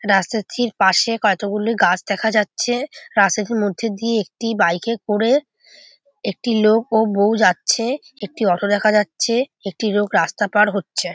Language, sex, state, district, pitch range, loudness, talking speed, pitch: Bengali, female, West Bengal, Jhargram, 200-230 Hz, -18 LUFS, 140 wpm, 215 Hz